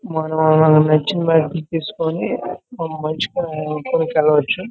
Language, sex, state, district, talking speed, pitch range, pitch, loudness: Telugu, male, Andhra Pradesh, Guntur, 75 wpm, 155-165 Hz, 160 Hz, -18 LUFS